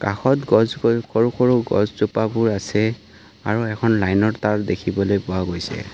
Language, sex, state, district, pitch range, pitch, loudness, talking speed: Assamese, male, Assam, Kamrup Metropolitan, 100-115 Hz, 105 Hz, -20 LUFS, 150 wpm